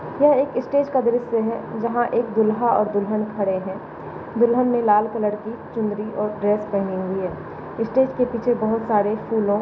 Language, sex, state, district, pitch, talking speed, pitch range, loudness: Hindi, female, Maharashtra, Sindhudurg, 220 Hz, 185 wpm, 210-240 Hz, -21 LUFS